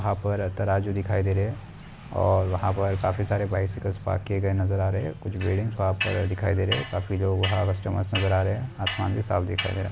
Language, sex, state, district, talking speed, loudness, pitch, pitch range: Hindi, male, Maharashtra, Pune, 255 wpm, -26 LUFS, 95 Hz, 95-100 Hz